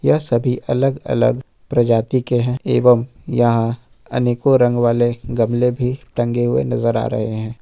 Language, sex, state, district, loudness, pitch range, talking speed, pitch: Hindi, male, Jharkhand, Ranchi, -18 LUFS, 115-125 Hz, 160 wpm, 120 Hz